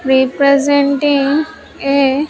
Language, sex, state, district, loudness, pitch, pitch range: English, female, Andhra Pradesh, Sri Satya Sai, -13 LUFS, 280 Hz, 275-285 Hz